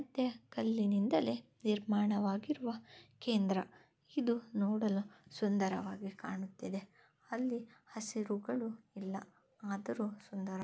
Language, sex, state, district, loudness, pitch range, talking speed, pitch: Kannada, female, Karnataka, Gulbarga, -38 LUFS, 195-225 Hz, 75 wpm, 210 Hz